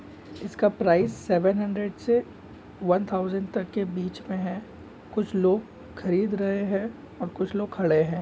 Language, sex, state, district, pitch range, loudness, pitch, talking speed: Hindi, male, Bihar, Darbhanga, 180-205 Hz, -26 LUFS, 195 Hz, 155 wpm